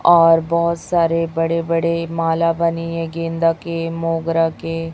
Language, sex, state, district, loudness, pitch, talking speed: Hindi, female, Chhattisgarh, Raipur, -18 LUFS, 165 Hz, 145 wpm